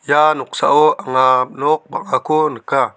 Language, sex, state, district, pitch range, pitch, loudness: Garo, male, Meghalaya, South Garo Hills, 130-155 Hz, 145 Hz, -15 LUFS